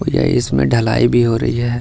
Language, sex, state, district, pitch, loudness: Hindi, male, Bihar, Gaya, 115 Hz, -15 LUFS